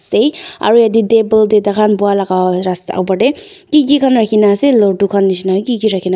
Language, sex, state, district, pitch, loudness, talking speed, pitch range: Nagamese, female, Nagaland, Dimapur, 215 Hz, -12 LUFS, 195 wpm, 195-235 Hz